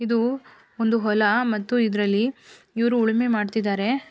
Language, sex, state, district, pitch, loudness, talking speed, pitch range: Kannada, female, Karnataka, Mysore, 230 Hz, -22 LUFS, 115 wpm, 210-240 Hz